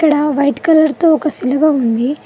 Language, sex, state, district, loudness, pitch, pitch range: Telugu, female, Telangana, Mahabubabad, -13 LUFS, 295 Hz, 275-310 Hz